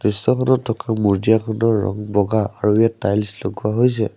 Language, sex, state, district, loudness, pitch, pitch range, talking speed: Assamese, male, Assam, Sonitpur, -19 LUFS, 110 Hz, 100-115 Hz, 145 wpm